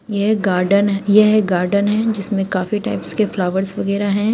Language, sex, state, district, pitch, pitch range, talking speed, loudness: Hindi, female, Uttar Pradesh, Shamli, 200 Hz, 195-210 Hz, 180 wpm, -17 LUFS